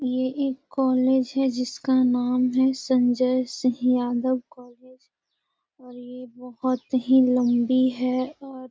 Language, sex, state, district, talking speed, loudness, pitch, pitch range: Hindi, female, Bihar, Gaya, 130 wpm, -23 LUFS, 255 Hz, 250-260 Hz